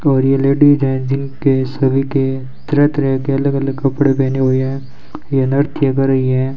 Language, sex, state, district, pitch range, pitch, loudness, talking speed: Hindi, male, Rajasthan, Bikaner, 130-140 Hz, 135 Hz, -15 LUFS, 185 wpm